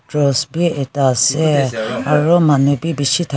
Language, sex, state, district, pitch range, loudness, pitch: Nagamese, female, Nagaland, Kohima, 135-155 Hz, -15 LUFS, 145 Hz